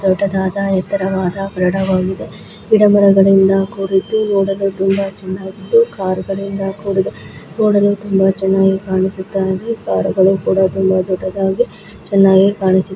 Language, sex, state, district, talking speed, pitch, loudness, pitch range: Kannada, female, Karnataka, Belgaum, 95 wpm, 195 Hz, -15 LUFS, 190-195 Hz